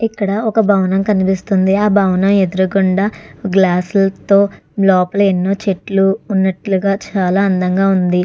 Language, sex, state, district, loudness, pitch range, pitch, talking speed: Telugu, female, Andhra Pradesh, Chittoor, -14 LUFS, 190-200 Hz, 195 Hz, 125 wpm